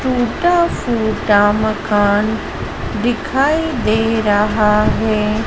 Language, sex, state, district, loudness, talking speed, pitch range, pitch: Hindi, female, Madhya Pradesh, Dhar, -16 LUFS, 75 wpm, 210-245 Hz, 220 Hz